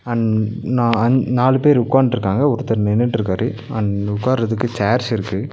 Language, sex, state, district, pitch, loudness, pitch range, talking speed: Tamil, male, Tamil Nadu, Nilgiris, 115 Hz, -18 LUFS, 110-125 Hz, 130 wpm